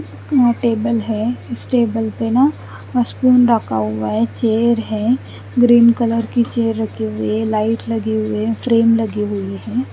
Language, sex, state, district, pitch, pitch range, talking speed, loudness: Hindi, female, Chandigarh, Chandigarh, 225 Hz, 215-235 Hz, 170 wpm, -17 LUFS